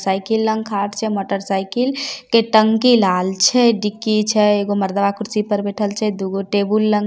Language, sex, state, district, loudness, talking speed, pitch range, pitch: Maithili, female, Bihar, Samastipur, -17 LUFS, 180 wpm, 200-220 Hz, 210 Hz